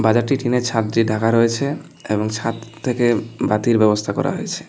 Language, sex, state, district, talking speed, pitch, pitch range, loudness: Bengali, male, West Bengal, Alipurduar, 165 wpm, 115 Hz, 110-125 Hz, -19 LUFS